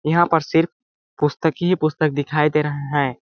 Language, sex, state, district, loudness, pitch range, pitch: Hindi, male, Chhattisgarh, Balrampur, -20 LUFS, 150-165 Hz, 155 Hz